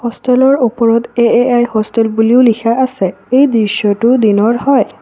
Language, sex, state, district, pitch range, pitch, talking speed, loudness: Assamese, female, Assam, Kamrup Metropolitan, 220-250 Hz, 235 Hz, 130 wpm, -11 LUFS